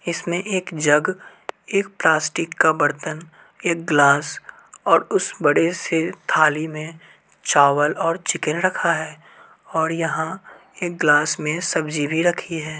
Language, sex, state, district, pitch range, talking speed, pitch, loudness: Hindi, male, Uttar Pradesh, Varanasi, 155-175 Hz, 135 wpm, 165 Hz, -20 LUFS